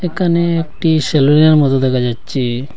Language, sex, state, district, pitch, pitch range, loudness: Bengali, male, Assam, Hailakandi, 150 Hz, 130-165 Hz, -14 LUFS